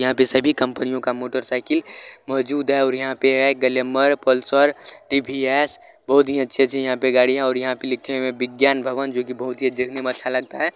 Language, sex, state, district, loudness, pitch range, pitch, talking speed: Maithili, male, Bihar, Supaul, -19 LUFS, 130-135 Hz, 130 Hz, 210 wpm